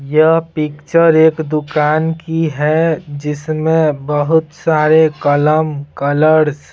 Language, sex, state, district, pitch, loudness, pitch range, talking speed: Hindi, male, Bihar, Patna, 155 Hz, -14 LUFS, 150-160 Hz, 105 wpm